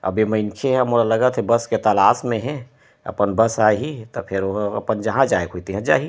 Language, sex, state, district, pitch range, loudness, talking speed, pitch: Chhattisgarhi, male, Chhattisgarh, Rajnandgaon, 100-125 Hz, -19 LUFS, 225 wpm, 110 Hz